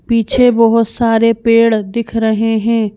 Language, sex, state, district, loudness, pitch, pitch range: Hindi, female, Madhya Pradesh, Bhopal, -12 LUFS, 230 Hz, 220-230 Hz